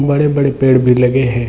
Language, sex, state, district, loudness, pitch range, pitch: Hindi, male, Chhattisgarh, Bilaspur, -12 LUFS, 125-140 Hz, 135 Hz